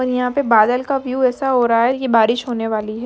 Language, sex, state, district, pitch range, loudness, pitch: Hindi, female, Maharashtra, Dhule, 230-260 Hz, -17 LUFS, 245 Hz